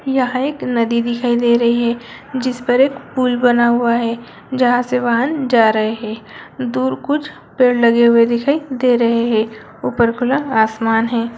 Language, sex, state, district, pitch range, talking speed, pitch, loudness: Hindi, female, Bihar, Jahanabad, 230-255 Hz, 175 wpm, 235 Hz, -16 LUFS